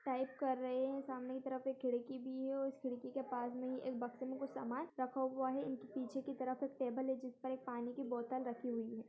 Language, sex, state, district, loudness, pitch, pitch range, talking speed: Hindi, female, Chhattisgarh, Kabirdham, -43 LUFS, 260 Hz, 250-265 Hz, 270 wpm